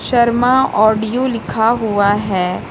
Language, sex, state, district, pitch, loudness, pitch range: Hindi, female, Uttar Pradesh, Lucknow, 225 Hz, -15 LUFS, 205-240 Hz